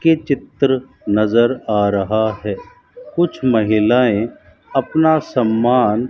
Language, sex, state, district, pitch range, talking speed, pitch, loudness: Hindi, male, Rajasthan, Bikaner, 110-155 Hz, 110 wpm, 125 Hz, -17 LUFS